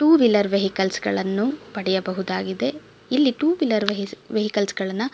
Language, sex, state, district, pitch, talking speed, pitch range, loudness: Kannada, female, Karnataka, Shimoga, 210 Hz, 115 wpm, 190-265 Hz, -22 LUFS